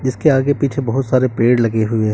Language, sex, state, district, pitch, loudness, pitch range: Hindi, male, Jharkhand, Deoghar, 130 Hz, -16 LUFS, 115-135 Hz